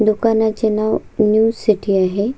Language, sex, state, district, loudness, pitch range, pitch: Marathi, female, Maharashtra, Solapur, -16 LUFS, 210-220 Hz, 215 Hz